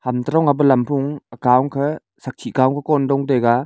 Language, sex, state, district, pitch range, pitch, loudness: Wancho, male, Arunachal Pradesh, Longding, 125-145 Hz, 135 Hz, -18 LUFS